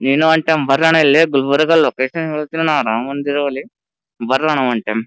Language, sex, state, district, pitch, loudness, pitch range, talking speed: Kannada, male, Karnataka, Gulbarga, 145 Hz, -15 LUFS, 135-160 Hz, 190 wpm